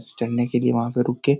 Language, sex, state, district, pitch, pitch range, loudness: Hindi, male, Bihar, Jahanabad, 120 Hz, 115-125 Hz, -22 LUFS